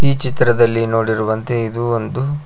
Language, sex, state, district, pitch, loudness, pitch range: Kannada, male, Karnataka, Koppal, 120 Hz, -17 LUFS, 115-130 Hz